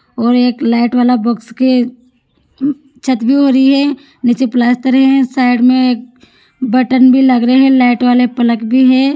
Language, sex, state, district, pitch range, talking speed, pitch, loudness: Hindi, female, Rajasthan, Churu, 245-260 Hz, 165 wpm, 255 Hz, -11 LUFS